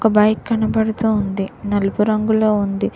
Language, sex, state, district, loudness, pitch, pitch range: Telugu, female, Telangana, Mahabubabad, -18 LUFS, 215 Hz, 205-220 Hz